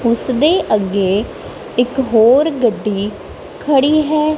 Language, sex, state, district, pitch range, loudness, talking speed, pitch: Punjabi, female, Punjab, Kapurthala, 210-300 Hz, -15 LUFS, 95 wpm, 245 Hz